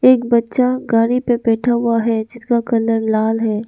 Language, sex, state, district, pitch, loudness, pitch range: Hindi, female, Arunachal Pradesh, Lower Dibang Valley, 230 Hz, -16 LUFS, 225-240 Hz